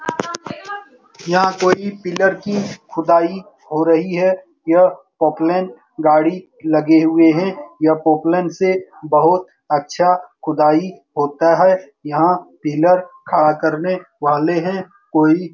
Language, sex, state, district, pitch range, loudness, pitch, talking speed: Hindi, male, Bihar, Saran, 155-185 Hz, -16 LUFS, 170 Hz, 115 wpm